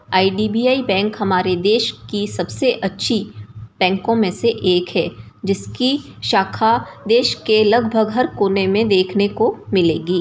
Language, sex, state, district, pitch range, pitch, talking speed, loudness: Hindi, female, Bihar, Samastipur, 190-230 Hz, 205 Hz, 135 wpm, -17 LUFS